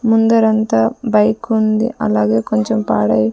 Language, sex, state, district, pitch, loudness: Telugu, female, Andhra Pradesh, Sri Satya Sai, 215 Hz, -15 LUFS